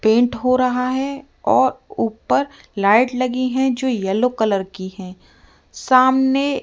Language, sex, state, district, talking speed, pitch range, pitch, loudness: Hindi, female, Rajasthan, Jaipur, 145 wpm, 220-265 Hz, 255 Hz, -18 LUFS